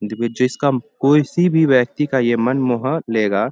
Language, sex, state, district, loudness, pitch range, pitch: Hindi, male, Bihar, Bhagalpur, -17 LUFS, 120-145 Hz, 130 Hz